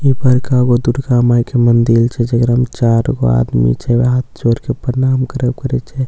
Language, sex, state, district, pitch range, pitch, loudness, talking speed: Maithili, male, Bihar, Katihar, 120-130 Hz, 125 Hz, -14 LUFS, 235 wpm